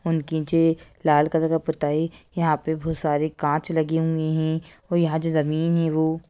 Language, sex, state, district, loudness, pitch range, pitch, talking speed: Hindi, female, Bihar, Sitamarhi, -23 LUFS, 155-165 Hz, 160 Hz, 170 wpm